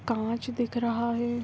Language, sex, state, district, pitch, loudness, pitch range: Hindi, female, Andhra Pradesh, Anantapur, 235 Hz, -29 LUFS, 235-240 Hz